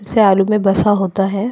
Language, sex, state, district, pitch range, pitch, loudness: Hindi, female, Goa, North and South Goa, 195-210 Hz, 200 Hz, -14 LUFS